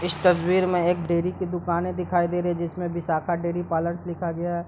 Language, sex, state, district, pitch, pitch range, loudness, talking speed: Hindi, male, Bihar, East Champaran, 175 Hz, 170-180 Hz, -25 LUFS, 230 wpm